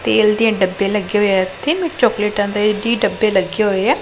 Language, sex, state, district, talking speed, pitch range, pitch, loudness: Punjabi, female, Punjab, Pathankot, 195 wpm, 200-220 Hz, 210 Hz, -16 LUFS